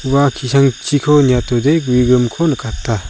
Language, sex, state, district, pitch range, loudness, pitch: Garo, male, Meghalaya, South Garo Hills, 125-145 Hz, -14 LUFS, 130 Hz